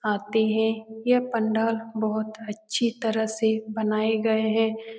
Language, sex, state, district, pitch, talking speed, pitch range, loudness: Hindi, female, Bihar, Jamui, 220 Hz, 130 wpm, 220-225 Hz, -25 LUFS